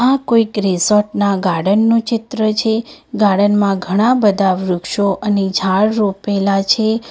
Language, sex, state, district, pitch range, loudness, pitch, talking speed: Gujarati, female, Gujarat, Valsad, 195-220 Hz, -15 LUFS, 205 Hz, 145 wpm